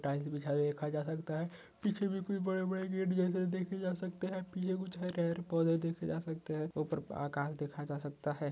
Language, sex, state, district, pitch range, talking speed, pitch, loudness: Hindi, male, Maharashtra, Solapur, 150-185 Hz, 230 wpm, 165 Hz, -37 LUFS